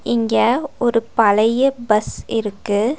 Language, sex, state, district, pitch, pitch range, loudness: Tamil, female, Tamil Nadu, Nilgiris, 230 Hz, 215-240 Hz, -18 LUFS